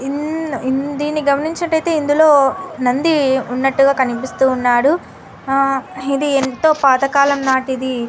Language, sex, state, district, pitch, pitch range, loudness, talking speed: Telugu, female, Andhra Pradesh, Anantapur, 275 Hz, 260-295 Hz, -16 LUFS, 110 wpm